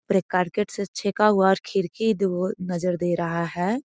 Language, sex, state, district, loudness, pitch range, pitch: Magahi, female, Bihar, Gaya, -24 LUFS, 175-205 Hz, 190 Hz